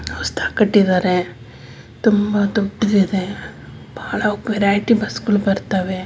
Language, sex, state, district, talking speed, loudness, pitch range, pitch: Kannada, female, Karnataka, Bellary, 80 wpm, -18 LUFS, 185-210 Hz, 200 Hz